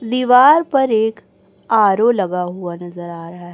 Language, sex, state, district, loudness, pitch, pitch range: Hindi, female, Chhattisgarh, Raipur, -14 LUFS, 210 Hz, 175-240 Hz